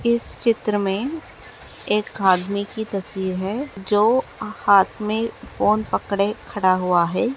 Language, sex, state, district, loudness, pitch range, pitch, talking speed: Hindi, female, Bihar, Jahanabad, -21 LUFS, 195-225 Hz, 210 Hz, 130 wpm